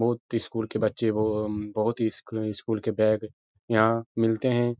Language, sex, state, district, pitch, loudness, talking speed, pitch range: Hindi, male, Uttar Pradesh, Etah, 110 Hz, -27 LUFS, 190 wpm, 110-115 Hz